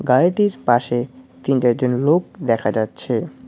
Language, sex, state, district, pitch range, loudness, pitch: Bengali, male, West Bengal, Cooch Behar, 120-145 Hz, -19 LUFS, 125 Hz